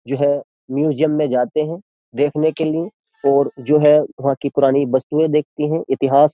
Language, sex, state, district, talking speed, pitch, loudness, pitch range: Hindi, male, Uttar Pradesh, Jyotiba Phule Nagar, 190 wpm, 145 Hz, -18 LUFS, 140-155 Hz